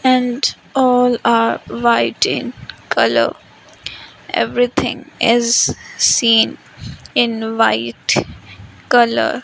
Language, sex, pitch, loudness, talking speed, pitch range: English, female, 235 Hz, -16 LUFS, 75 wpm, 225-250 Hz